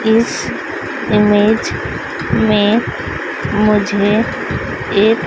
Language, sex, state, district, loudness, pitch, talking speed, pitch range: Hindi, female, Madhya Pradesh, Dhar, -15 LUFS, 210 Hz, 55 wpm, 205-220 Hz